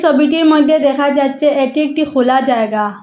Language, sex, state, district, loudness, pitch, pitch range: Bengali, female, Assam, Hailakandi, -13 LUFS, 285 Hz, 260-300 Hz